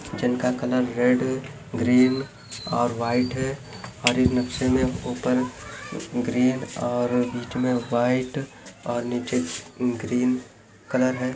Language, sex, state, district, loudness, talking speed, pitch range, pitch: Hindi, male, Chhattisgarh, Bilaspur, -24 LUFS, 125 wpm, 120-130 Hz, 125 Hz